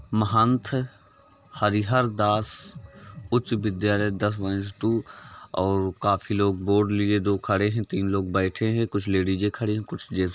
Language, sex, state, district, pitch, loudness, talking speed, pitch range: Hindi, male, Uttar Pradesh, Varanasi, 105 Hz, -25 LUFS, 145 wpm, 100-110 Hz